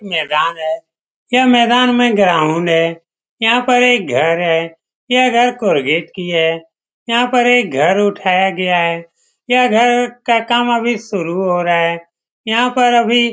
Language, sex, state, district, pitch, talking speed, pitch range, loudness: Hindi, male, Bihar, Saran, 205 Hz, 165 wpm, 170-245 Hz, -14 LUFS